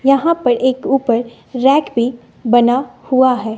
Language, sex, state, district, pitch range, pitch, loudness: Hindi, female, Bihar, West Champaran, 240-265 Hz, 255 Hz, -15 LUFS